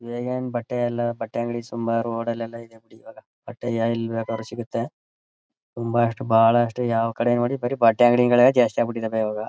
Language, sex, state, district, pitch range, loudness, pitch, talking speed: Kannada, male, Karnataka, Mysore, 115-120 Hz, -22 LUFS, 115 Hz, 170 wpm